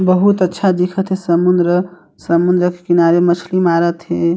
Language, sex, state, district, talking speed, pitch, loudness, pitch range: Chhattisgarhi, male, Chhattisgarh, Sarguja, 135 wpm, 180 Hz, -14 LUFS, 170-185 Hz